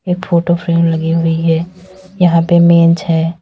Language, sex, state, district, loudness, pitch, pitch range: Hindi, female, Uttar Pradesh, Lalitpur, -12 LUFS, 170 Hz, 165-175 Hz